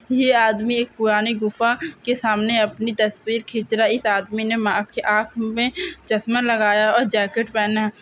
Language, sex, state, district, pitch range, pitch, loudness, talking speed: Hindi, female, Bihar, Purnia, 215-235 Hz, 220 Hz, -20 LUFS, 180 wpm